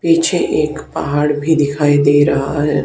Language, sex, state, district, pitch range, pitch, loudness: Hindi, female, Haryana, Charkhi Dadri, 145-155 Hz, 150 Hz, -14 LUFS